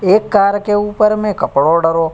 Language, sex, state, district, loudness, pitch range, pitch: Hindi, male, Uttar Pradesh, Budaun, -13 LUFS, 185-210 Hz, 205 Hz